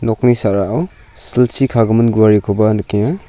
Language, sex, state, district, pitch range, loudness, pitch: Garo, male, Meghalaya, South Garo Hills, 105-125 Hz, -14 LUFS, 115 Hz